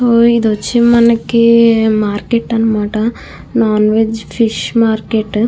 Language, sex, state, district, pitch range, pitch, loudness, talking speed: Telugu, female, Andhra Pradesh, Krishna, 220-235 Hz, 225 Hz, -12 LUFS, 130 wpm